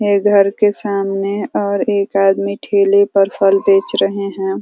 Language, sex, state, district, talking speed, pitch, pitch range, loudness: Hindi, female, Uttar Pradesh, Ghazipur, 170 wpm, 200 Hz, 195-200 Hz, -15 LUFS